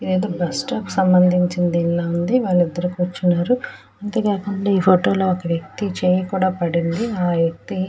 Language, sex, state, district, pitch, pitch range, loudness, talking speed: Telugu, female, Andhra Pradesh, Srikakulam, 180 Hz, 175-195 Hz, -19 LUFS, 165 wpm